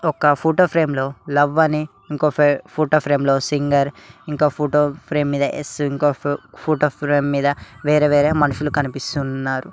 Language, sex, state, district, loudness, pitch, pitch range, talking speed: Telugu, male, Telangana, Mahabubabad, -19 LUFS, 145 Hz, 140-150 Hz, 150 wpm